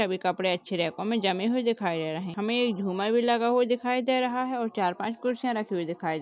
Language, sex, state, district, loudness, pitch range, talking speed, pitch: Hindi, female, Chhattisgarh, Bastar, -27 LUFS, 180-245 Hz, 290 wpm, 215 Hz